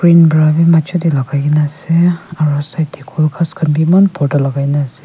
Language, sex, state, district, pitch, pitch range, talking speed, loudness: Nagamese, female, Nagaland, Kohima, 155 Hz, 145-170 Hz, 200 wpm, -13 LUFS